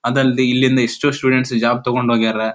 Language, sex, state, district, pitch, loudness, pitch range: Kannada, male, Karnataka, Dharwad, 125 Hz, -16 LUFS, 120-130 Hz